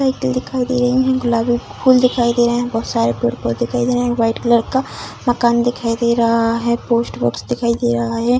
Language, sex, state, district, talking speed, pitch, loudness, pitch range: Hindi, female, Bihar, Darbhanga, 230 wpm, 235 Hz, -17 LUFS, 230-245 Hz